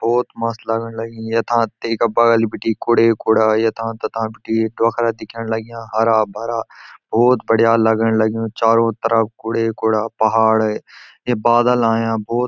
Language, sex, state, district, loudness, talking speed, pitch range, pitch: Garhwali, male, Uttarakhand, Uttarkashi, -17 LUFS, 155 wpm, 110-115 Hz, 115 Hz